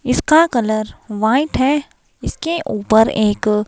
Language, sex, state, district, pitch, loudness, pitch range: Hindi, female, Himachal Pradesh, Shimla, 225 Hz, -16 LUFS, 215-290 Hz